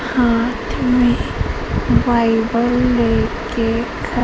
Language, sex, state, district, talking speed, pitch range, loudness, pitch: Hindi, male, Madhya Pradesh, Katni, 70 wpm, 230-245 Hz, -17 LUFS, 235 Hz